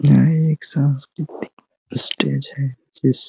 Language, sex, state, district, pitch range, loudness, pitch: Hindi, male, Uttar Pradesh, Ghazipur, 135-160 Hz, -19 LUFS, 145 Hz